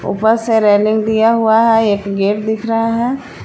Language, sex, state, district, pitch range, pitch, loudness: Hindi, female, Jharkhand, Palamu, 215-225 Hz, 220 Hz, -14 LUFS